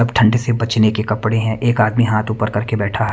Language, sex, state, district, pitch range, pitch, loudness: Hindi, male, Himachal Pradesh, Shimla, 105-115 Hz, 110 Hz, -17 LUFS